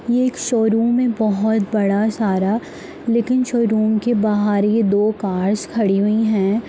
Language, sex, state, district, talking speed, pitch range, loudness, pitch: Hindi, female, Bihar, Darbhanga, 150 wpm, 205-235 Hz, -18 LUFS, 220 Hz